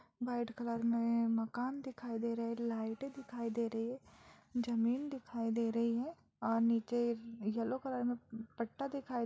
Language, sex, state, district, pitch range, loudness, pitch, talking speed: Hindi, female, Bihar, Jahanabad, 230-245 Hz, -38 LUFS, 235 Hz, 170 wpm